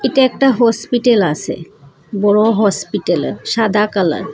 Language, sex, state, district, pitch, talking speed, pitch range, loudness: Bengali, female, Assam, Hailakandi, 210 Hz, 125 wpm, 190-240 Hz, -15 LUFS